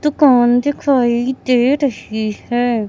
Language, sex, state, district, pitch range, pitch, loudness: Hindi, female, Madhya Pradesh, Katni, 240-275 Hz, 245 Hz, -15 LUFS